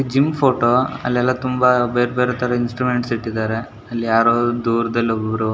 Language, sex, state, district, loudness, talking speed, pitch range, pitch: Kannada, male, Karnataka, Shimoga, -18 LUFS, 160 wpm, 115-125 Hz, 120 Hz